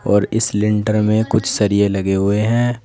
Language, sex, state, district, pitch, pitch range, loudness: Hindi, male, Uttar Pradesh, Saharanpur, 105 Hz, 100-110 Hz, -16 LUFS